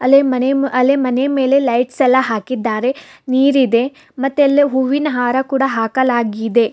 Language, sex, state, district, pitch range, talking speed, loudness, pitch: Kannada, female, Karnataka, Bidar, 245-275 Hz, 105 wpm, -15 LUFS, 260 Hz